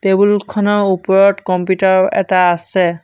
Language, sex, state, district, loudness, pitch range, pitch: Assamese, male, Assam, Sonitpur, -13 LUFS, 185-200 Hz, 190 Hz